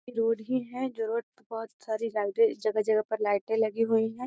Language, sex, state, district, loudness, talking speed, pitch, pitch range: Magahi, female, Bihar, Gaya, -29 LUFS, 210 wpm, 225 Hz, 220-230 Hz